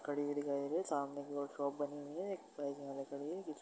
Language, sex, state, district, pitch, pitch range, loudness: Hindi, male, Uttar Pradesh, Varanasi, 145 Hz, 140-145 Hz, -42 LUFS